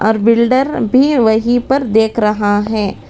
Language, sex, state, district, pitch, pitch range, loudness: Hindi, female, Karnataka, Bangalore, 225 Hz, 215-250 Hz, -13 LUFS